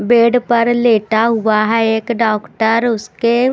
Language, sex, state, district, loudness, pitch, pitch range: Hindi, female, Haryana, Jhajjar, -14 LUFS, 230 Hz, 220-235 Hz